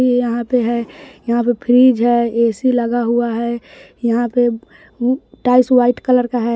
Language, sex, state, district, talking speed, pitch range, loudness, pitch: Hindi, male, Bihar, West Champaran, 165 wpm, 235-250 Hz, -16 LUFS, 240 Hz